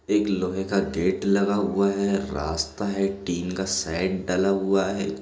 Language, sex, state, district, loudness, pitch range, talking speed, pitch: Hindi, male, Chhattisgarh, Sarguja, -25 LUFS, 95-100 Hz, 175 wpm, 95 Hz